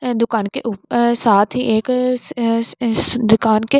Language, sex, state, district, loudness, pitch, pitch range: Hindi, female, Delhi, New Delhi, -17 LUFS, 235 Hz, 220-250 Hz